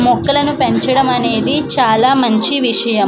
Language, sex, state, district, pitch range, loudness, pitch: Telugu, female, Andhra Pradesh, Manyam, 230-270 Hz, -13 LUFS, 255 Hz